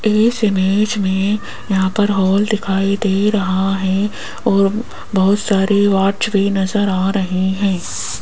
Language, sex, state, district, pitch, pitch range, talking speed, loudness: Hindi, female, Rajasthan, Jaipur, 195 Hz, 190-205 Hz, 140 wpm, -16 LUFS